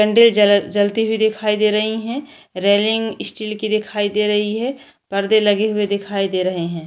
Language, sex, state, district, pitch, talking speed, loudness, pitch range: Hindi, female, Chhattisgarh, Kabirdham, 210 Hz, 190 wpm, -18 LUFS, 205-220 Hz